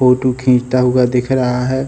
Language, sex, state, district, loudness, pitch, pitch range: Hindi, male, Bihar, Samastipur, -14 LUFS, 125 Hz, 125-130 Hz